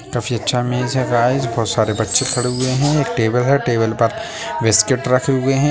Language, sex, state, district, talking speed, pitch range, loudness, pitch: Hindi, male, Bihar, Sitamarhi, 210 wpm, 115-130 Hz, -17 LUFS, 125 Hz